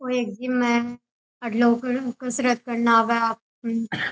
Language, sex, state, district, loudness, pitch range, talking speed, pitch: Rajasthani, female, Rajasthan, Churu, -23 LUFS, 230-250 Hz, 160 wpm, 235 Hz